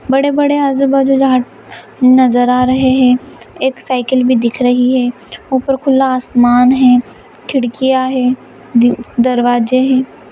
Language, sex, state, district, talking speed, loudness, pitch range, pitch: Hindi, female, Bihar, Vaishali, 140 wpm, -12 LUFS, 245-265 Hz, 255 Hz